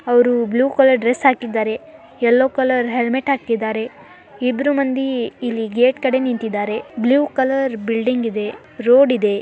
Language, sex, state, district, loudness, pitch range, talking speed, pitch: Kannada, male, Karnataka, Dharwad, -18 LUFS, 230-265 Hz, 135 wpm, 245 Hz